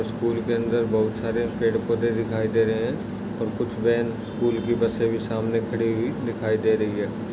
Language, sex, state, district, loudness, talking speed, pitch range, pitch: Hindi, male, Maharashtra, Chandrapur, -24 LUFS, 205 wpm, 110-115 Hz, 115 Hz